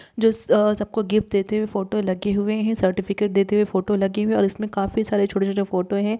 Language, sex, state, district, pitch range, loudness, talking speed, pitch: Hindi, female, Uttar Pradesh, Etah, 195-215 Hz, -22 LUFS, 240 wpm, 205 Hz